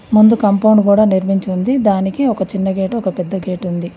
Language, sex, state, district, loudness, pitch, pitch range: Telugu, female, Telangana, Mahabubabad, -14 LUFS, 195 Hz, 190-215 Hz